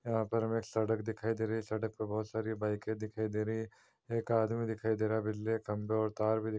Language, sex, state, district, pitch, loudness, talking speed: Hindi, male, Uttar Pradesh, Jyotiba Phule Nagar, 110 Hz, -35 LUFS, 275 wpm